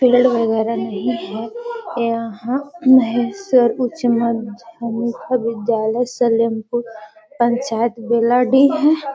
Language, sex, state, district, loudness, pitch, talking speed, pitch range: Hindi, female, Bihar, Gaya, -18 LUFS, 235 Hz, 80 wpm, 230-250 Hz